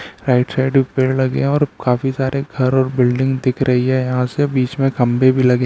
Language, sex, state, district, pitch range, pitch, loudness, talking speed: Hindi, male, Bihar, Araria, 125-135 Hz, 130 Hz, -16 LUFS, 245 wpm